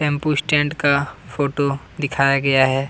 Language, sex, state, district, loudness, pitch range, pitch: Hindi, male, Chhattisgarh, Kabirdham, -19 LUFS, 140-145 Hz, 140 Hz